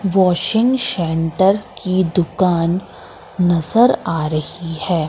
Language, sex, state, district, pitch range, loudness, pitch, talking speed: Hindi, female, Madhya Pradesh, Katni, 165-190 Hz, -17 LUFS, 180 Hz, 95 wpm